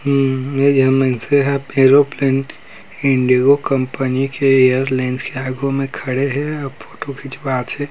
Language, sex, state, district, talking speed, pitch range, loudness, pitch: Chhattisgarhi, male, Chhattisgarh, Raigarh, 130 wpm, 130-140 Hz, -16 LUFS, 135 Hz